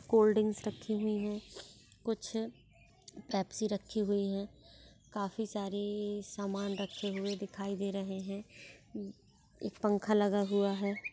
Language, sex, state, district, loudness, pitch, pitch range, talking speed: Hindi, female, Maharashtra, Chandrapur, -35 LUFS, 205 Hz, 200-215 Hz, 125 wpm